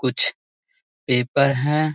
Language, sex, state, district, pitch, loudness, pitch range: Hindi, male, Bihar, Muzaffarpur, 140 Hz, -20 LUFS, 125-150 Hz